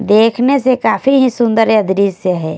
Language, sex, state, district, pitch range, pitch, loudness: Hindi, female, Punjab, Kapurthala, 200-255 Hz, 225 Hz, -12 LUFS